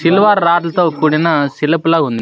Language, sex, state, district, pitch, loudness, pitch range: Telugu, male, Andhra Pradesh, Sri Satya Sai, 165 Hz, -13 LUFS, 155-175 Hz